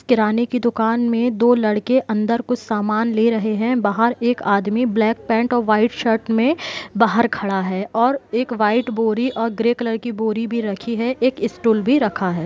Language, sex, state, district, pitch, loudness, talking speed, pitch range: Hindi, male, Jharkhand, Jamtara, 230 Hz, -19 LUFS, 200 wpm, 215-240 Hz